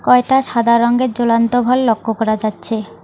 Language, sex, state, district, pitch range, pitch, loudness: Bengali, female, West Bengal, Alipurduar, 225-245 Hz, 235 Hz, -14 LUFS